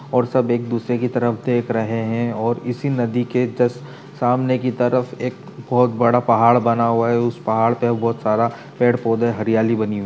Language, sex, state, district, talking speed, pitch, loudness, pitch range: Hindi, male, Uttar Pradesh, Etah, 210 wpm, 120 Hz, -19 LUFS, 115-125 Hz